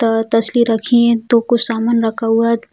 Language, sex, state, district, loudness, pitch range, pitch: Hindi, female, Bihar, Jamui, -15 LUFS, 225-235 Hz, 230 Hz